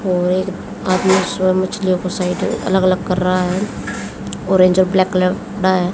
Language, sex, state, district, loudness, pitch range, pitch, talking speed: Hindi, female, Haryana, Jhajjar, -17 LUFS, 185-190 Hz, 185 Hz, 170 wpm